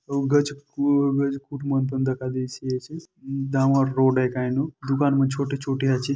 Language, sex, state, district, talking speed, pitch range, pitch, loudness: Halbi, male, Chhattisgarh, Bastar, 80 wpm, 130-140 Hz, 135 Hz, -24 LUFS